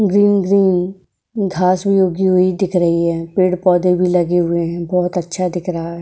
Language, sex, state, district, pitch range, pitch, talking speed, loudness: Hindi, female, Uttar Pradesh, Etah, 175-190 Hz, 180 Hz, 190 wpm, -16 LUFS